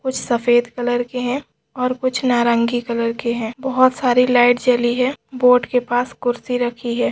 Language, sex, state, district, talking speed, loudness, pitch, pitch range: Hindi, female, Maharashtra, Dhule, 185 wpm, -18 LUFS, 245 Hz, 240-255 Hz